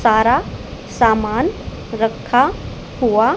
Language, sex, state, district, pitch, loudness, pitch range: Hindi, female, Haryana, Charkhi Dadri, 225 Hz, -17 LUFS, 220-245 Hz